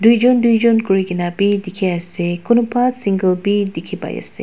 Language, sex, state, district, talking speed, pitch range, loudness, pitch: Nagamese, female, Nagaland, Dimapur, 160 wpm, 180-230 Hz, -16 LUFS, 200 Hz